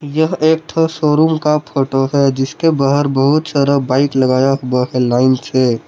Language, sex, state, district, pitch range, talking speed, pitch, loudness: Hindi, male, Jharkhand, Palamu, 130-155 Hz, 175 wpm, 140 Hz, -14 LUFS